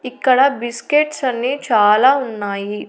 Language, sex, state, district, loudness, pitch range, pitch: Telugu, female, Andhra Pradesh, Annamaya, -16 LUFS, 220-270 Hz, 255 Hz